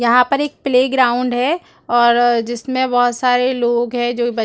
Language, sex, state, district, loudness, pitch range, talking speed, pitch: Hindi, female, Chhattisgarh, Rajnandgaon, -16 LUFS, 240-255 Hz, 190 wpm, 245 Hz